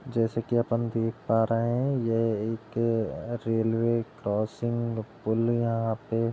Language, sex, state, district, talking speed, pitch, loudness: Hindi, male, Uttar Pradesh, Gorakhpur, 140 wpm, 115 Hz, -28 LUFS